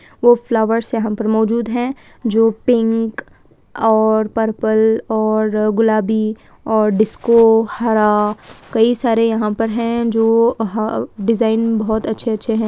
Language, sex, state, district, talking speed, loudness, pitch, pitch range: Hindi, female, Chhattisgarh, Balrampur, 130 wpm, -16 LUFS, 225 Hz, 220-230 Hz